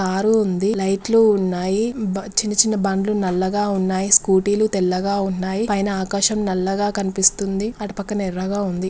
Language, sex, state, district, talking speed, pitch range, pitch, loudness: Telugu, female, Andhra Pradesh, Guntur, 140 wpm, 190-210 Hz, 200 Hz, -19 LUFS